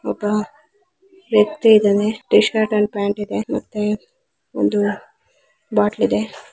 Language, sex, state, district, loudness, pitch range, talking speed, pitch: Kannada, female, Karnataka, Belgaum, -18 LUFS, 210-290 Hz, 100 wpm, 215 Hz